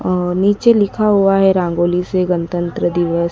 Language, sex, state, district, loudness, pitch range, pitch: Hindi, female, Madhya Pradesh, Dhar, -15 LUFS, 175-195 Hz, 180 Hz